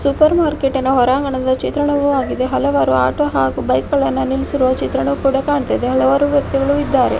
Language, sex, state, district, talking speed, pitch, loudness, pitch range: Kannada, female, Karnataka, Dharwad, 135 wpm, 265 Hz, -16 LUFS, 250-285 Hz